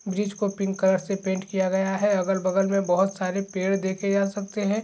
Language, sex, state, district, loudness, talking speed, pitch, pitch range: Hindi, male, Chhattisgarh, Raigarh, -25 LUFS, 235 wpm, 195 Hz, 190-200 Hz